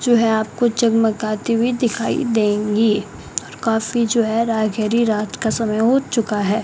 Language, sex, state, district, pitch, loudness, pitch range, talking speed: Hindi, male, Rajasthan, Bikaner, 225 Hz, -18 LUFS, 215-235 Hz, 160 wpm